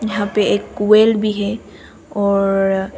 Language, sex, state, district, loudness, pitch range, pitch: Hindi, female, Arunachal Pradesh, Papum Pare, -16 LUFS, 195-215 Hz, 205 Hz